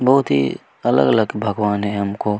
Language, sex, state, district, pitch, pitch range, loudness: Hindi, male, Chhattisgarh, Kabirdham, 105 Hz, 100-110 Hz, -18 LUFS